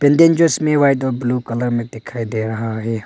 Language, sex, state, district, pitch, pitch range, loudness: Hindi, male, Arunachal Pradesh, Longding, 120 Hz, 115-145 Hz, -17 LUFS